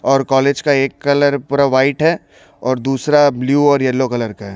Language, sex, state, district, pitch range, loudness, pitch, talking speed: Hindi, male, Odisha, Khordha, 130-145 Hz, -15 LUFS, 135 Hz, 210 wpm